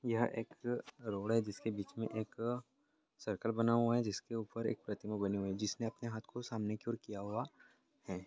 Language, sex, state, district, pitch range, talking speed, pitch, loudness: Hindi, male, Andhra Pradesh, Krishna, 105-115 Hz, 210 wpm, 110 Hz, -39 LUFS